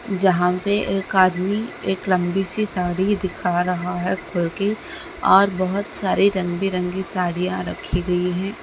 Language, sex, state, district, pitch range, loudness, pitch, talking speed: Hindi, male, Bihar, Bhagalpur, 180-200 Hz, -21 LUFS, 185 Hz, 155 wpm